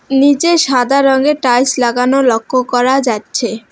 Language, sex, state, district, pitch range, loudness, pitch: Bengali, female, West Bengal, Alipurduar, 245-275 Hz, -12 LUFS, 255 Hz